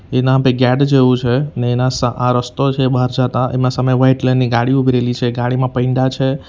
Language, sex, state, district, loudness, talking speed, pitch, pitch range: Gujarati, male, Gujarat, Valsad, -15 LUFS, 220 wpm, 130 Hz, 125-130 Hz